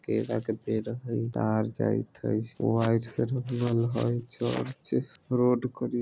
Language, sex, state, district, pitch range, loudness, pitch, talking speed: Maithili, male, Bihar, Vaishali, 110-120 Hz, -29 LUFS, 115 Hz, 150 wpm